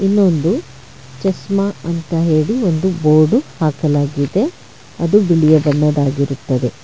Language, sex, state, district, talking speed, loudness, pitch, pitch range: Kannada, female, Karnataka, Bangalore, 90 wpm, -15 LUFS, 155 Hz, 140-185 Hz